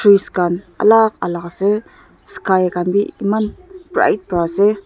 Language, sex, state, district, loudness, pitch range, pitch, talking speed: Nagamese, female, Nagaland, Dimapur, -17 LUFS, 180-220 Hz, 200 Hz, 150 wpm